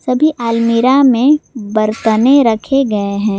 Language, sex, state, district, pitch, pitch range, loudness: Hindi, female, Jharkhand, Garhwa, 230 Hz, 215-270 Hz, -12 LUFS